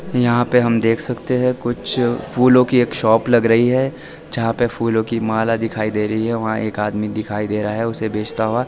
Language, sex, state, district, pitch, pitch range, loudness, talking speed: Hindi, male, Himachal Pradesh, Shimla, 115 Hz, 110-125 Hz, -18 LUFS, 230 wpm